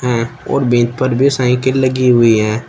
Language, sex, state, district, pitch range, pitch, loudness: Hindi, male, Uttar Pradesh, Shamli, 120-130 Hz, 125 Hz, -13 LUFS